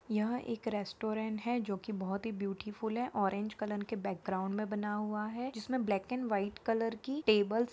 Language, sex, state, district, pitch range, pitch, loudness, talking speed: Hindi, female, Jharkhand, Jamtara, 205-230 Hz, 215 Hz, -36 LUFS, 200 wpm